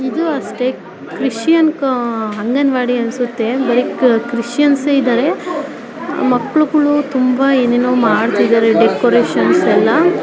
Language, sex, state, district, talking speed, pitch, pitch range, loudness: Kannada, female, Karnataka, Chamarajanagar, 95 wpm, 255 Hz, 240-290 Hz, -14 LUFS